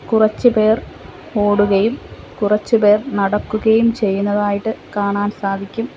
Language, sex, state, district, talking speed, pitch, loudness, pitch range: Malayalam, female, Kerala, Kollam, 90 wpm, 210 Hz, -17 LUFS, 205-220 Hz